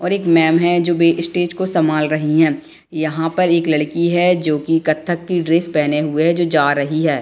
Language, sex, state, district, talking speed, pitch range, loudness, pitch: Hindi, female, Bihar, Gopalganj, 225 wpm, 155-175 Hz, -16 LUFS, 165 Hz